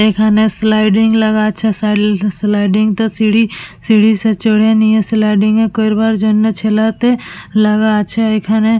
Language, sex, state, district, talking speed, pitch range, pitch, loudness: Bengali, female, West Bengal, Purulia, 125 wpm, 215-220 Hz, 215 Hz, -12 LUFS